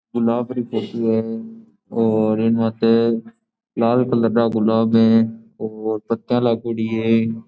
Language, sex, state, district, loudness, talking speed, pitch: Marwari, male, Rajasthan, Nagaur, -19 LUFS, 120 wpm, 115 Hz